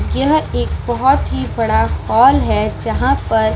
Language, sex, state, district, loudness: Hindi, female, Bihar, Vaishali, -15 LUFS